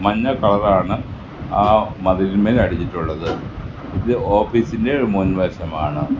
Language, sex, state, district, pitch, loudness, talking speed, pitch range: Malayalam, male, Kerala, Kasaragod, 95 Hz, -18 LUFS, 95 wpm, 85-105 Hz